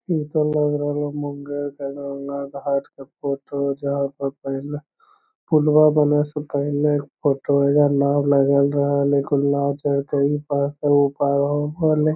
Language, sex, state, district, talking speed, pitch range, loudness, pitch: Magahi, male, Bihar, Lakhisarai, 150 wpm, 140-145 Hz, -21 LUFS, 145 Hz